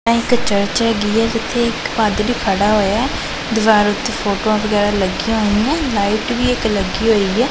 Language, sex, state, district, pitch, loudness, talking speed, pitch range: Punjabi, female, Punjab, Pathankot, 220 Hz, -16 LUFS, 175 wpm, 205-230 Hz